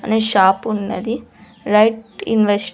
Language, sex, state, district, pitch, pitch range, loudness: Telugu, female, Andhra Pradesh, Sri Satya Sai, 220 Hz, 205-225 Hz, -17 LUFS